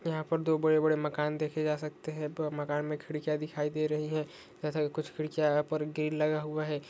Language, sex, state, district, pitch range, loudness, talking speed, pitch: Hindi, male, West Bengal, Paschim Medinipur, 150-155 Hz, -32 LUFS, 225 wpm, 155 Hz